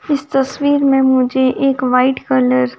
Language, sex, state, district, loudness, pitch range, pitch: Hindi, female, Punjab, Kapurthala, -14 LUFS, 250-275 Hz, 260 Hz